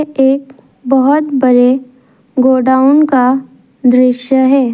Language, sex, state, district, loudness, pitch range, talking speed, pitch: Hindi, female, Tripura, West Tripura, -11 LUFS, 255-270 Hz, 90 wpm, 260 Hz